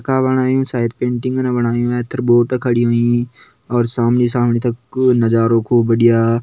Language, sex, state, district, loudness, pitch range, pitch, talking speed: Kumaoni, male, Uttarakhand, Tehri Garhwal, -16 LUFS, 120-125 Hz, 120 Hz, 130 wpm